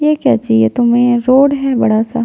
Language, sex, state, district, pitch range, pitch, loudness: Hindi, female, Chhattisgarh, Jashpur, 230-270 Hz, 245 Hz, -12 LUFS